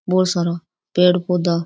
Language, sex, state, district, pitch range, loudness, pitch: Rajasthani, female, Rajasthan, Churu, 170-185 Hz, -18 LUFS, 180 Hz